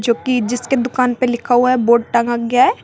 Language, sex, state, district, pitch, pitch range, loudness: Hindi, female, Jharkhand, Garhwa, 245 Hz, 235-250 Hz, -16 LUFS